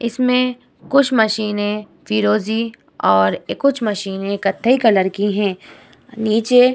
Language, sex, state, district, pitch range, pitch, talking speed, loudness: Hindi, female, Uttar Pradesh, Muzaffarnagar, 195-250 Hz, 215 Hz, 115 wpm, -17 LUFS